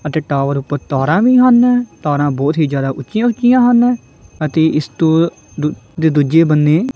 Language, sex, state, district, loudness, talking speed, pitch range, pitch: Punjabi, male, Punjab, Kapurthala, -14 LUFS, 165 wpm, 145-235 Hz, 155 Hz